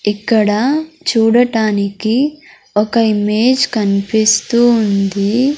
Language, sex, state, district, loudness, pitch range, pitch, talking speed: Telugu, female, Andhra Pradesh, Sri Satya Sai, -14 LUFS, 210-245 Hz, 220 Hz, 65 wpm